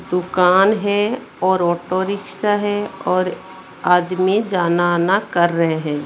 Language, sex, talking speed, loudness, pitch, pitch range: Hindi, female, 130 wpm, -18 LUFS, 185 Hz, 175-200 Hz